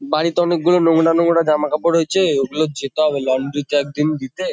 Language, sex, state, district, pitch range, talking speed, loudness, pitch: Bengali, male, West Bengal, Kolkata, 145-170 Hz, 170 wpm, -17 LUFS, 155 Hz